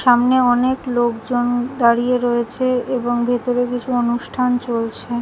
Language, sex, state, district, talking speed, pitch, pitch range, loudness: Bengali, female, West Bengal, Dakshin Dinajpur, 115 wpm, 245 Hz, 240-250 Hz, -18 LUFS